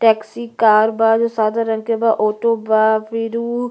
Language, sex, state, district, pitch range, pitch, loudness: Bhojpuri, female, Uttar Pradesh, Gorakhpur, 220-230 Hz, 225 Hz, -16 LUFS